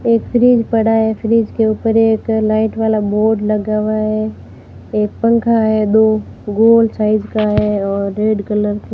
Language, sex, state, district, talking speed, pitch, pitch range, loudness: Hindi, female, Rajasthan, Barmer, 175 wpm, 220 Hz, 215-225 Hz, -15 LUFS